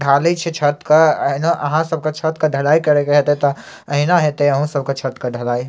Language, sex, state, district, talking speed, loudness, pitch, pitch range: Maithili, male, Bihar, Samastipur, 210 wpm, -16 LUFS, 145 Hz, 140-155 Hz